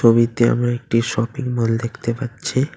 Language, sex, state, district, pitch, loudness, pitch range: Bengali, male, West Bengal, Cooch Behar, 120 Hz, -20 LUFS, 115-125 Hz